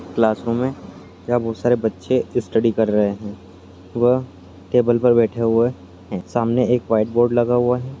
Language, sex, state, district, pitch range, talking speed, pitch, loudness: Hindi, male, Chhattisgarh, Raigarh, 100-120 Hz, 180 wpm, 115 Hz, -19 LUFS